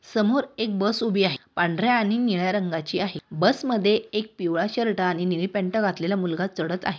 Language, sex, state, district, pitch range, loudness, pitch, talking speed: Marathi, female, Maharashtra, Aurangabad, 180-220 Hz, -24 LUFS, 200 Hz, 190 wpm